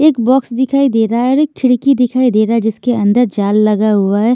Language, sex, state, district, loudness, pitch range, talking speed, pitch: Hindi, female, Maharashtra, Washim, -13 LUFS, 215-260 Hz, 260 wpm, 240 Hz